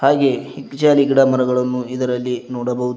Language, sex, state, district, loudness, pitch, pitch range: Kannada, male, Karnataka, Koppal, -17 LUFS, 125 Hz, 125-135 Hz